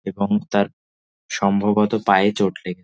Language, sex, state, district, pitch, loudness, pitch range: Bengali, male, West Bengal, Dakshin Dinajpur, 100 Hz, -20 LUFS, 90-105 Hz